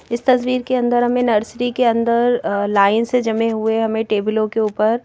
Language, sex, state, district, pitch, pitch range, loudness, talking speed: Hindi, female, Madhya Pradesh, Bhopal, 230 Hz, 220-245 Hz, -17 LUFS, 200 wpm